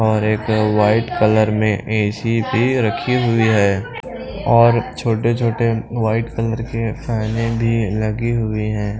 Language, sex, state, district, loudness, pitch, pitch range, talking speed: Hindi, male, Punjab, Pathankot, -17 LUFS, 115 Hz, 110-115 Hz, 135 wpm